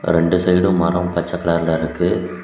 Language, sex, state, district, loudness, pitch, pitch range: Tamil, male, Tamil Nadu, Kanyakumari, -17 LUFS, 90 Hz, 85-90 Hz